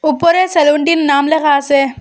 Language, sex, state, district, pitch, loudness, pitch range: Bengali, female, Assam, Hailakandi, 300 Hz, -12 LUFS, 285-330 Hz